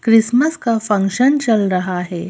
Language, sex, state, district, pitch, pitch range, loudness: Hindi, female, Madhya Pradesh, Bhopal, 225 Hz, 185-245 Hz, -16 LUFS